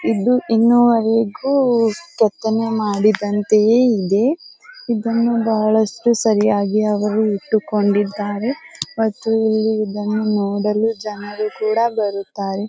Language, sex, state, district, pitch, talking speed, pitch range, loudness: Kannada, female, Karnataka, Bijapur, 220 Hz, 80 wpm, 210-230 Hz, -18 LUFS